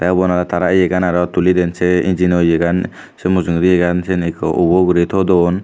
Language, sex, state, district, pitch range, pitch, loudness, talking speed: Chakma, male, Tripura, Dhalai, 85-90 Hz, 90 Hz, -15 LUFS, 180 wpm